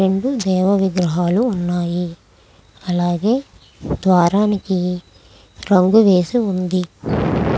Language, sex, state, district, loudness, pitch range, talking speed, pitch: Telugu, female, Andhra Pradesh, Krishna, -17 LUFS, 175-195 Hz, 70 wpm, 180 Hz